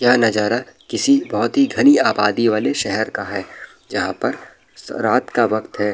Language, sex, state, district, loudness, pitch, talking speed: Hindi, male, Bihar, Araria, -18 LUFS, 120 Hz, 170 wpm